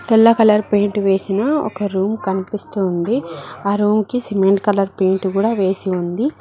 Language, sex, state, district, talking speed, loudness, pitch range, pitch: Telugu, female, Telangana, Mahabubabad, 150 wpm, -17 LUFS, 190-215 Hz, 200 Hz